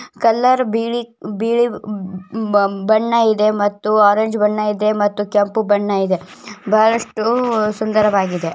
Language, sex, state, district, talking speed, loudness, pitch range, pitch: Kannada, female, Karnataka, Bellary, 120 wpm, -17 LUFS, 205-225 Hz, 215 Hz